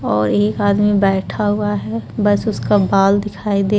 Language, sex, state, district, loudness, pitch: Hindi, female, Jharkhand, Ranchi, -16 LUFS, 200 Hz